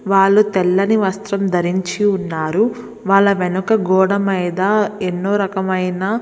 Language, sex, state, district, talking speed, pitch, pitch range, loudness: Telugu, female, Andhra Pradesh, Visakhapatnam, 115 wpm, 195 Hz, 185-205 Hz, -16 LUFS